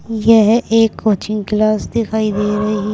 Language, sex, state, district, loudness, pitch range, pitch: Hindi, female, Uttar Pradesh, Saharanpur, -15 LUFS, 210-225 Hz, 215 Hz